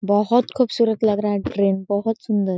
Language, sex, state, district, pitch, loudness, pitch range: Hindi, female, Chhattisgarh, Korba, 210 Hz, -20 LUFS, 200-225 Hz